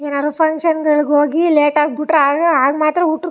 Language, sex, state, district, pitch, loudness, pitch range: Kannada, female, Karnataka, Chamarajanagar, 305 Hz, -14 LUFS, 295-325 Hz